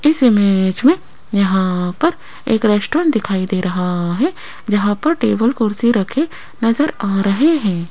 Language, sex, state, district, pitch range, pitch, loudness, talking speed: Hindi, female, Rajasthan, Jaipur, 190-280 Hz, 210 Hz, -16 LUFS, 150 wpm